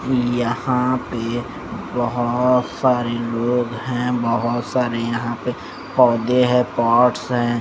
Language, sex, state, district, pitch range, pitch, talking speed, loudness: Hindi, male, Punjab, Pathankot, 120-125 Hz, 120 Hz, 110 wpm, -19 LUFS